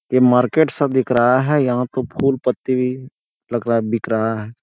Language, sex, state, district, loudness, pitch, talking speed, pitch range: Hindi, male, Bihar, Jamui, -18 LUFS, 125 Hz, 155 wpm, 120-130 Hz